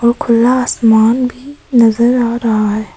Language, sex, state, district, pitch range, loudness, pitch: Hindi, female, Arunachal Pradesh, Papum Pare, 225-250 Hz, -12 LUFS, 235 Hz